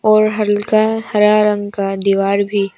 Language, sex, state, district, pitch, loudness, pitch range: Hindi, female, Arunachal Pradesh, Papum Pare, 210 Hz, -15 LUFS, 200-215 Hz